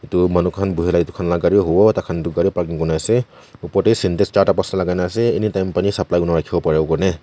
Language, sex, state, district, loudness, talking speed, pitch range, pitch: Nagamese, male, Nagaland, Kohima, -18 LUFS, 250 wpm, 85-100 Hz, 90 Hz